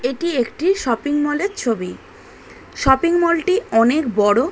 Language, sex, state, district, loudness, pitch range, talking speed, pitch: Bengali, female, West Bengal, Kolkata, -18 LUFS, 235-340 Hz, 120 wpm, 290 Hz